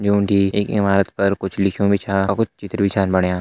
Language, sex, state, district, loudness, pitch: Hindi, male, Uttarakhand, Tehri Garhwal, -19 LUFS, 100 Hz